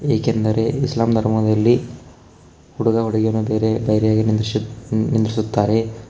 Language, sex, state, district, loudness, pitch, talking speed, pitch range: Kannada, male, Karnataka, Koppal, -19 LUFS, 110 Hz, 100 wpm, 110-115 Hz